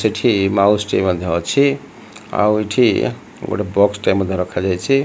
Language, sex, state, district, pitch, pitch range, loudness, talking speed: Odia, male, Odisha, Malkangiri, 105 Hz, 95-105 Hz, -17 LUFS, 120 wpm